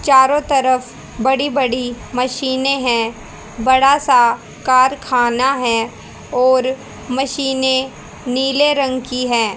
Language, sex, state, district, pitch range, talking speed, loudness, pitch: Hindi, female, Haryana, Jhajjar, 245-270 Hz, 100 wpm, -16 LUFS, 260 Hz